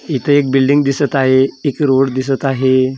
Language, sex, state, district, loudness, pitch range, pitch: Marathi, male, Maharashtra, Gondia, -14 LUFS, 130-145 Hz, 135 Hz